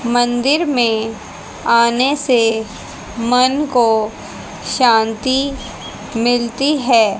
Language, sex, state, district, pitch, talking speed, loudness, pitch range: Hindi, female, Haryana, Jhajjar, 240 Hz, 75 wpm, -15 LUFS, 225-260 Hz